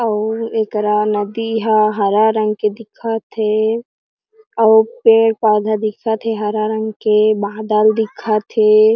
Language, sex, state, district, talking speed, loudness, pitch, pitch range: Chhattisgarhi, female, Chhattisgarh, Jashpur, 135 wpm, -16 LUFS, 215 Hz, 215-225 Hz